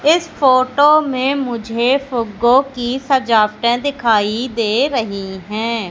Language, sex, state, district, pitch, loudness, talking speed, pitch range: Hindi, female, Madhya Pradesh, Katni, 245 Hz, -16 LUFS, 110 wpm, 225-275 Hz